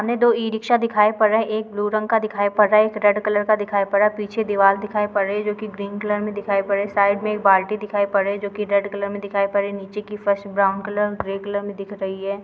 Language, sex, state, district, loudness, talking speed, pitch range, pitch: Hindi, female, Bihar, Lakhisarai, -20 LUFS, 320 wpm, 200-210 Hz, 205 Hz